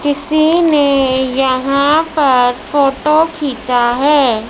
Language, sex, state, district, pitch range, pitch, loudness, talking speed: Hindi, female, Madhya Pradesh, Dhar, 260-300 Hz, 280 Hz, -13 LUFS, 95 wpm